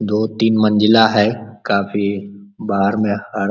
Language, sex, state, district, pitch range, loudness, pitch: Hindi, male, Uttar Pradesh, Ghazipur, 100-110 Hz, -16 LUFS, 105 Hz